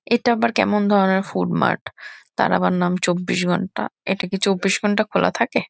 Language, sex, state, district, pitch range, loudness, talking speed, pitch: Bengali, female, West Bengal, Kolkata, 180-210 Hz, -20 LUFS, 180 wpm, 195 Hz